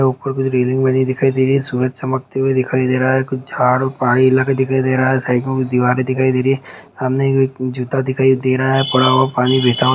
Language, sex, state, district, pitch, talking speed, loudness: Hindi, male, Jharkhand, Sahebganj, 130 Hz, 240 wpm, -16 LUFS